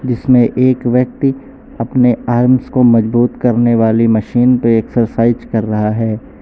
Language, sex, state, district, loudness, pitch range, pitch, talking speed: Hindi, male, Uttar Pradesh, Lucknow, -13 LUFS, 115-125 Hz, 120 Hz, 140 wpm